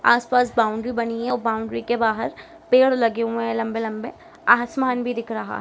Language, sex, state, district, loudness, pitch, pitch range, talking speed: Hindi, female, Bihar, Sitamarhi, -21 LUFS, 235 Hz, 225-245 Hz, 195 wpm